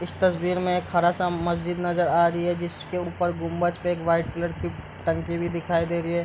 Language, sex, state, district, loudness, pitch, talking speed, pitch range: Hindi, male, Bihar, East Champaran, -25 LUFS, 175 Hz, 220 wpm, 170-175 Hz